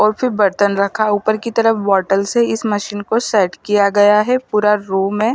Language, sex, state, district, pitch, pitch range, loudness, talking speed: Hindi, male, Punjab, Fazilka, 210 Hz, 200-225 Hz, -15 LUFS, 215 wpm